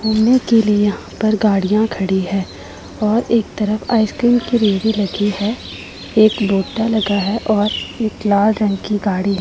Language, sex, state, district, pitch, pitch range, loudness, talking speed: Hindi, female, Punjab, Pathankot, 210 Hz, 200-220 Hz, -16 LUFS, 170 wpm